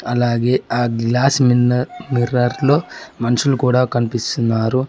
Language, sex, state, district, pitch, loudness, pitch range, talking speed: Telugu, male, Telangana, Mahabubabad, 125 Hz, -17 LUFS, 120-130 Hz, 110 wpm